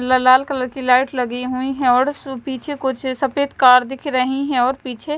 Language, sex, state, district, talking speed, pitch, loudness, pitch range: Hindi, male, Punjab, Fazilka, 220 wpm, 260 Hz, -18 LUFS, 255-275 Hz